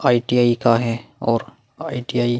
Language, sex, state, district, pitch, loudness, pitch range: Hindi, male, Bihar, Vaishali, 120 Hz, -20 LUFS, 115-125 Hz